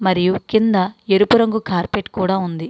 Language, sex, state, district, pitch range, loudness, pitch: Telugu, female, Andhra Pradesh, Srikakulam, 185-220 Hz, -17 LUFS, 195 Hz